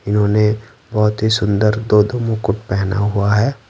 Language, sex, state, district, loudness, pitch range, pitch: Hindi, male, Bihar, Patna, -16 LUFS, 105-110 Hz, 105 Hz